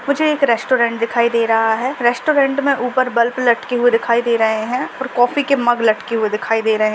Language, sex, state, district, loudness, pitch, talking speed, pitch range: Hindi, female, Maharashtra, Sindhudurg, -16 LUFS, 240 Hz, 235 wpm, 230-255 Hz